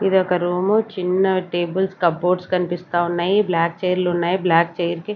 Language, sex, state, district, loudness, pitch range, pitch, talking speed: Telugu, female, Andhra Pradesh, Sri Satya Sai, -20 LUFS, 175-190 Hz, 180 Hz, 165 wpm